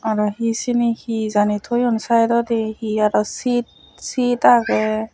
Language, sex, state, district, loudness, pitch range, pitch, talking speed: Chakma, female, Tripura, West Tripura, -19 LUFS, 215-240 Hz, 230 Hz, 140 wpm